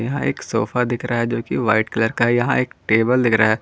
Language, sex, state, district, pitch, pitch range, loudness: Hindi, male, Jharkhand, Ranchi, 120 Hz, 115-125 Hz, -19 LUFS